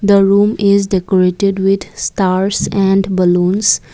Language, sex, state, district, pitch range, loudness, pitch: English, female, Assam, Kamrup Metropolitan, 185-200 Hz, -13 LUFS, 195 Hz